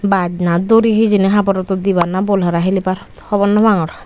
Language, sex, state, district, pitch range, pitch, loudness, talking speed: Chakma, female, Tripura, Unakoti, 185-205 Hz, 195 Hz, -14 LUFS, 205 wpm